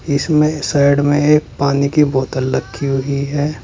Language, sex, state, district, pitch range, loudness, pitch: Hindi, male, Uttar Pradesh, Saharanpur, 135-150 Hz, -15 LUFS, 140 Hz